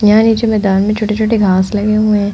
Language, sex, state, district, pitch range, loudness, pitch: Hindi, female, Uttar Pradesh, Hamirpur, 205-215 Hz, -12 LUFS, 210 Hz